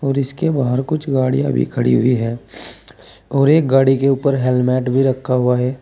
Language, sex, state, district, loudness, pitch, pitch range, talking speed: Hindi, male, Uttar Pradesh, Saharanpur, -16 LUFS, 130 Hz, 125-135 Hz, 195 wpm